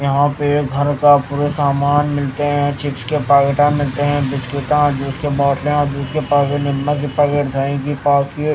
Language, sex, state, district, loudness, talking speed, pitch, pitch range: Hindi, male, Haryana, Rohtak, -16 LUFS, 190 wpm, 145 Hz, 140-145 Hz